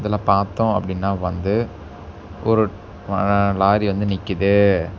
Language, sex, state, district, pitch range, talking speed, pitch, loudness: Tamil, male, Tamil Nadu, Namakkal, 95-100 Hz, 85 wpm, 100 Hz, -19 LUFS